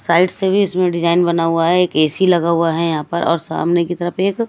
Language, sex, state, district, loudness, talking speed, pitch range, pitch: Hindi, female, Odisha, Malkangiri, -16 LUFS, 265 wpm, 165-180 Hz, 175 Hz